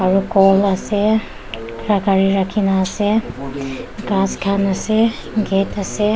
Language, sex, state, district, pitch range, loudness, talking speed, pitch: Nagamese, female, Nagaland, Dimapur, 190-210 Hz, -17 LUFS, 135 wpm, 195 Hz